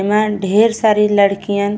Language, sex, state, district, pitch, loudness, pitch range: Bhojpuri, female, Uttar Pradesh, Gorakhpur, 210 Hz, -14 LUFS, 200-215 Hz